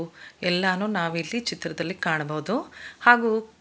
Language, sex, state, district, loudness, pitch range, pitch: Kannada, female, Karnataka, Bangalore, -24 LUFS, 165-220 Hz, 185 Hz